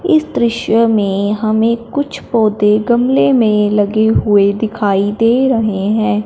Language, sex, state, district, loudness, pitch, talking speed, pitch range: Hindi, female, Punjab, Fazilka, -13 LUFS, 220 Hz, 135 wpm, 210-235 Hz